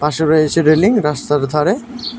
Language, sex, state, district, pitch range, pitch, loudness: Bengali, male, Tripura, West Tripura, 150-220 Hz, 155 Hz, -14 LUFS